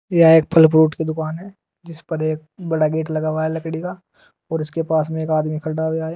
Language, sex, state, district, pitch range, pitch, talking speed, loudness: Hindi, male, Uttar Pradesh, Saharanpur, 155-165 Hz, 160 Hz, 245 wpm, -19 LUFS